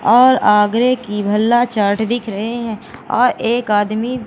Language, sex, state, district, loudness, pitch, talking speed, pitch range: Hindi, female, Madhya Pradesh, Katni, -15 LUFS, 225 Hz, 155 wpm, 210-240 Hz